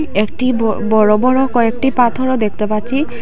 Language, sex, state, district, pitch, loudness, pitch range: Bengali, female, Assam, Hailakandi, 235 Hz, -15 LUFS, 215-260 Hz